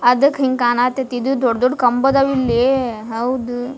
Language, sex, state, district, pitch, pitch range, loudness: Kannada, female, Karnataka, Dharwad, 250 Hz, 245-265 Hz, -17 LUFS